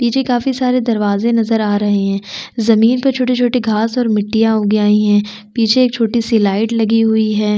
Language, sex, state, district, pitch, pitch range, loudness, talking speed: Hindi, female, Chhattisgarh, Sukma, 225 Hz, 210-240 Hz, -14 LUFS, 215 wpm